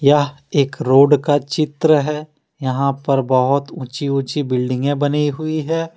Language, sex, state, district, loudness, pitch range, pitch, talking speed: Hindi, male, Jharkhand, Deoghar, -17 LUFS, 135-150 Hz, 145 Hz, 150 wpm